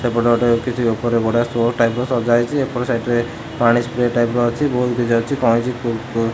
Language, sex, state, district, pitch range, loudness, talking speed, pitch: Odia, male, Odisha, Khordha, 115-125 Hz, -18 LUFS, 55 wpm, 120 Hz